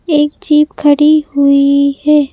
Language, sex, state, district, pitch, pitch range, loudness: Hindi, male, Madhya Pradesh, Bhopal, 295 Hz, 280-300 Hz, -11 LUFS